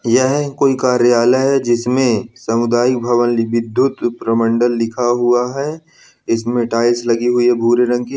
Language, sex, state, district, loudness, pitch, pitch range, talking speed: Hindi, male, Bihar, Muzaffarpur, -15 LUFS, 120 Hz, 120-125 Hz, 155 wpm